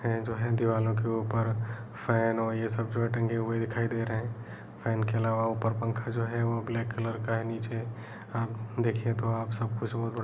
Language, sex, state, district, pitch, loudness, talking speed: Kumaoni, male, Uttarakhand, Uttarkashi, 115 Hz, -31 LUFS, 230 wpm